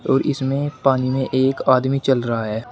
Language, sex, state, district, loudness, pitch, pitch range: Hindi, male, Uttar Pradesh, Shamli, -19 LUFS, 130 Hz, 130-135 Hz